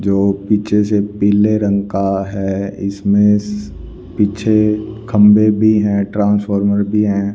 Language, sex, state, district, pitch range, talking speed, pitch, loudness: Hindi, male, Haryana, Rohtak, 100-105 Hz, 120 wpm, 100 Hz, -15 LUFS